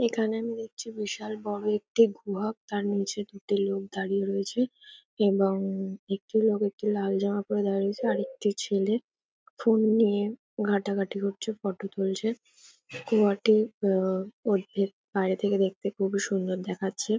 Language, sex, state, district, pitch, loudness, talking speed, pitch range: Bengali, female, West Bengal, North 24 Parganas, 205 Hz, -28 LUFS, 145 wpm, 195-220 Hz